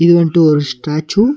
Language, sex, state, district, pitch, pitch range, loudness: Tamil, male, Tamil Nadu, Nilgiris, 165 Hz, 150-170 Hz, -13 LUFS